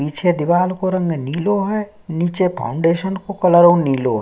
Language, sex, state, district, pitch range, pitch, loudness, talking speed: Hindi, male, Uttarakhand, Tehri Garhwal, 160-185 Hz, 175 Hz, -17 LUFS, 170 wpm